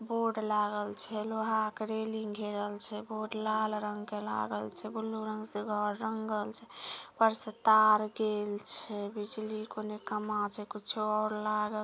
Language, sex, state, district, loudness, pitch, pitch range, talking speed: Maithili, female, Bihar, Samastipur, -33 LUFS, 215 Hz, 210-220 Hz, 175 wpm